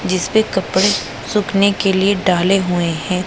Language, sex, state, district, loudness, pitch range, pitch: Hindi, female, Punjab, Pathankot, -16 LUFS, 180-200 Hz, 190 Hz